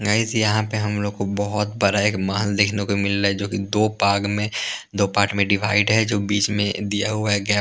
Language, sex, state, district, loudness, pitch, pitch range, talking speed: Hindi, male, Punjab, Pathankot, -21 LUFS, 105 Hz, 100-105 Hz, 260 wpm